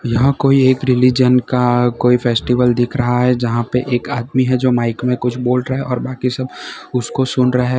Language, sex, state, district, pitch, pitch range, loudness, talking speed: Hindi, male, Gujarat, Valsad, 125 Hz, 120-130 Hz, -16 LUFS, 225 wpm